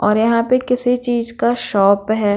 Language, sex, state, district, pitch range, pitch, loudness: Hindi, female, Bihar, Patna, 210-245 Hz, 230 Hz, -16 LUFS